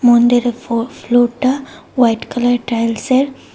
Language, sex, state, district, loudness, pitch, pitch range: Bengali, female, Tripura, West Tripura, -15 LUFS, 245 Hz, 235-255 Hz